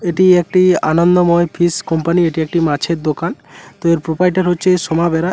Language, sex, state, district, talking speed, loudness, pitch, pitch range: Bengali, male, West Bengal, Paschim Medinipur, 155 wpm, -14 LUFS, 170 Hz, 165-180 Hz